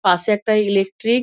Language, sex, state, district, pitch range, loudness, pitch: Bengali, female, West Bengal, Dakshin Dinajpur, 195-215 Hz, -18 LUFS, 210 Hz